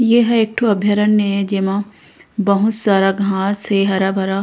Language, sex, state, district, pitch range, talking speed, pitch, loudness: Chhattisgarhi, female, Chhattisgarh, Korba, 195-215 Hz, 150 wpm, 200 Hz, -16 LUFS